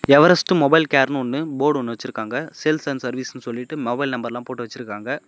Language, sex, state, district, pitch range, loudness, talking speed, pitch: Tamil, male, Tamil Nadu, Namakkal, 125-145 Hz, -21 LUFS, 180 wpm, 130 Hz